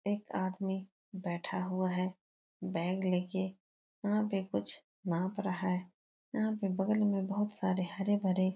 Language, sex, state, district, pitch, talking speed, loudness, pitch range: Hindi, female, Uttar Pradesh, Etah, 190 Hz, 145 wpm, -35 LUFS, 185-200 Hz